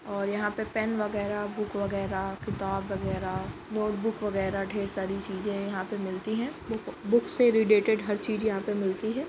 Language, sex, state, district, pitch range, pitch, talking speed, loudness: Hindi, female, Uttar Pradesh, Jalaun, 195-220 Hz, 205 Hz, 175 wpm, -29 LUFS